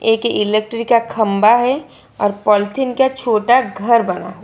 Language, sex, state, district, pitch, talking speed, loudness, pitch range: Hindi, female, Gujarat, Valsad, 225 Hz, 175 wpm, -15 LUFS, 210-245 Hz